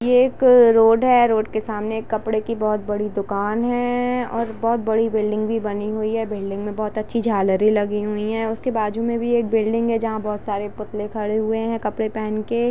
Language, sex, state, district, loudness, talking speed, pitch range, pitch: Hindi, female, Jharkhand, Jamtara, -20 LUFS, 220 wpm, 210-230 Hz, 220 Hz